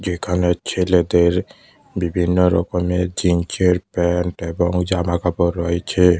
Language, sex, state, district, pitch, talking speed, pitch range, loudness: Bengali, male, Tripura, West Tripura, 90 Hz, 85 wpm, 85-90 Hz, -19 LUFS